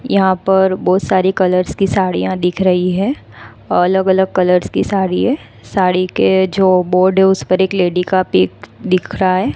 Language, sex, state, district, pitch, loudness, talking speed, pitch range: Hindi, female, Gujarat, Gandhinagar, 185 Hz, -14 LUFS, 190 wpm, 180-190 Hz